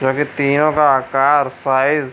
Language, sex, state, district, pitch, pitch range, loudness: Hindi, male, Bihar, Supaul, 140 Hz, 130-145 Hz, -15 LUFS